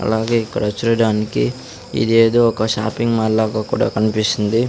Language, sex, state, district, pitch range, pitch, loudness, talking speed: Telugu, male, Andhra Pradesh, Sri Satya Sai, 110-115 Hz, 110 Hz, -17 LUFS, 130 wpm